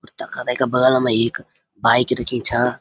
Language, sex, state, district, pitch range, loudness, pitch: Garhwali, male, Uttarakhand, Uttarkashi, 120-125 Hz, -18 LUFS, 125 Hz